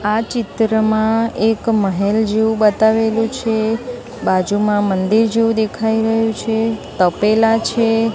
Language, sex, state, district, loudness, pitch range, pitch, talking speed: Gujarati, female, Gujarat, Gandhinagar, -16 LUFS, 215-225 Hz, 220 Hz, 110 wpm